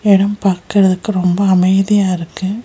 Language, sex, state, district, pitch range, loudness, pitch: Tamil, female, Tamil Nadu, Nilgiris, 185-200 Hz, -14 LUFS, 195 Hz